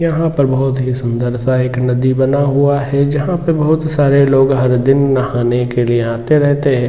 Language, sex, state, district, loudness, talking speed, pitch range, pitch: Hindi, male, Jharkhand, Jamtara, -14 LUFS, 210 wpm, 125-140 Hz, 135 Hz